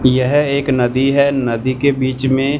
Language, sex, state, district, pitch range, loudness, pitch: Hindi, male, Punjab, Fazilka, 130-140 Hz, -15 LUFS, 130 Hz